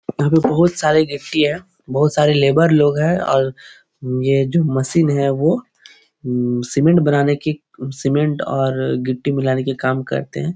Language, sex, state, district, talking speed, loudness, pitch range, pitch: Hindi, male, Bihar, Jahanabad, 160 wpm, -17 LUFS, 135-155 Hz, 145 Hz